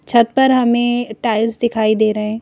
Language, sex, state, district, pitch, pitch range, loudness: Hindi, female, Madhya Pradesh, Bhopal, 230 Hz, 220-240 Hz, -15 LUFS